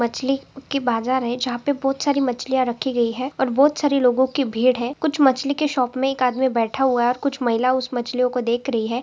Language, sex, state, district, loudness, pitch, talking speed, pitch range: Hindi, female, Andhra Pradesh, Guntur, -21 LUFS, 255 Hz, 245 wpm, 245-270 Hz